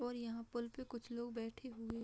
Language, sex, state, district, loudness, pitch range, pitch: Hindi, female, Bihar, Madhepura, -46 LUFS, 230-245 Hz, 235 Hz